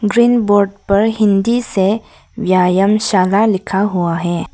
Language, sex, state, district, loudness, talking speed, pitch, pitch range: Hindi, female, Arunachal Pradesh, Lower Dibang Valley, -14 LUFS, 130 wpm, 200 Hz, 190-215 Hz